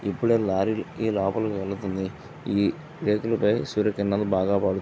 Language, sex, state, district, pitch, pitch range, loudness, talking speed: Telugu, male, Andhra Pradesh, Visakhapatnam, 100 Hz, 95-110 Hz, -25 LUFS, 125 wpm